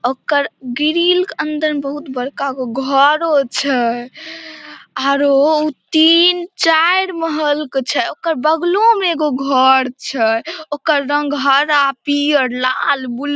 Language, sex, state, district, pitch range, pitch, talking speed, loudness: Maithili, female, Bihar, Samastipur, 270-315 Hz, 290 Hz, 135 wpm, -15 LUFS